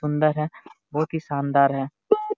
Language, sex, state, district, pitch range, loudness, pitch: Hindi, male, Jharkhand, Jamtara, 140-160 Hz, -24 LUFS, 150 Hz